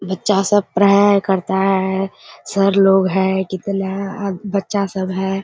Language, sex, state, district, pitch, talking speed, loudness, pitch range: Hindi, female, Bihar, Kishanganj, 195 Hz, 145 wpm, -17 LUFS, 190-200 Hz